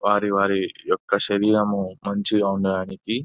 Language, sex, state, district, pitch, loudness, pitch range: Telugu, male, Telangana, Nalgonda, 100 Hz, -22 LUFS, 95-105 Hz